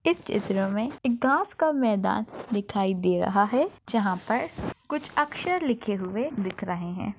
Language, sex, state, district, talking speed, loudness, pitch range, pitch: Hindi, female, Chhattisgarh, Bastar, 165 wpm, -27 LUFS, 200-280 Hz, 220 Hz